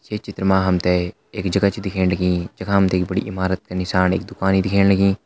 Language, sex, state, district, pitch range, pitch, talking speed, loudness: Hindi, male, Uttarakhand, Uttarkashi, 90-100 Hz, 95 Hz, 250 wpm, -20 LUFS